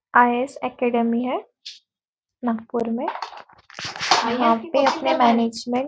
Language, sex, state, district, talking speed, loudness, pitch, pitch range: Hindi, female, Maharashtra, Nagpur, 120 wpm, -21 LUFS, 240 Hz, 230-250 Hz